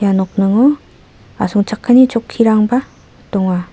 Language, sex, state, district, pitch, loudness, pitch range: Garo, female, Meghalaya, South Garo Hills, 215 Hz, -14 LUFS, 195-240 Hz